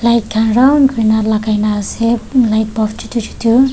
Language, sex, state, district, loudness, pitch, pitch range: Nagamese, female, Nagaland, Kohima, -13 LUFS, 230 Hz, 220-235 Hz